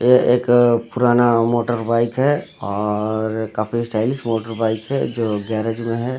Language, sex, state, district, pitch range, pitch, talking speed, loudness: Hindi, male, Bihar, Samastipur, 110-120 Hz, 115 Hz, 135 wpm, -19 LUFS